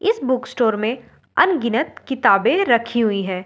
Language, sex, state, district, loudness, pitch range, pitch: Hindi, female, Delhi, New Delhi, -19 LUFS, 220-265 Hz, 235 Hz